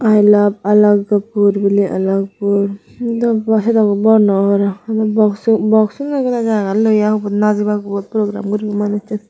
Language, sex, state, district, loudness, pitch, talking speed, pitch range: Chakma, female, Tripura, Unakoti, -14 LUFS, 210 Hz, 155 wpm, 200-220 Hz